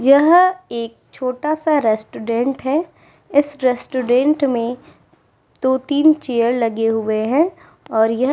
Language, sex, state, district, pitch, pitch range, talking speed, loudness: Hindi, female, Uttar Pradesh, Muzaffarnagar, 260 Hz, 235-295 Hz, 130 wpm, -18 LUFS